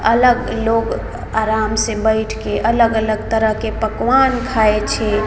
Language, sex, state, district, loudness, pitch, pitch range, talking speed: Maithili, female, Bihar, Samastipur, -16 LUFS, 220 Hz, 220-230 Hz, 135 wpm